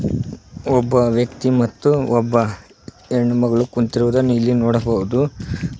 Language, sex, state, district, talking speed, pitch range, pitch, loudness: Kannada, male, Karnataka, Koppal, 95 wpm, 115-125 Hz, 120 Hz, -18 LUFS